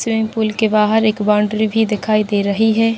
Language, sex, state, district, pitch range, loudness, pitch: Hindi, female, Chhattisgarh, Bilaspur, 210-220 Hz, -16 LUFS, 215 Hz